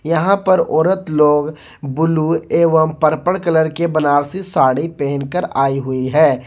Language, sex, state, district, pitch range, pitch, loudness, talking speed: Hindi, male, Jharkhand, Garhwa, 145-165 Hz, 155 Hz, -16 LUFS, 140 wpm